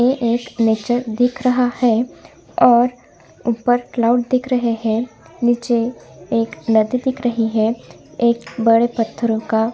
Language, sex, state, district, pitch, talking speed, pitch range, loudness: Hindi, female, Chhattisgarh, Sukma, 235 Hz, 135 wpm, 230-245 Hz, -18 LUFS